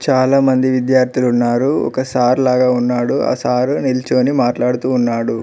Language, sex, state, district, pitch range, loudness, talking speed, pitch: Telugu, male, Telangana, Mahabubabad, 125-130 Hz, -15 LUFS, 130 wpm, 125 Hz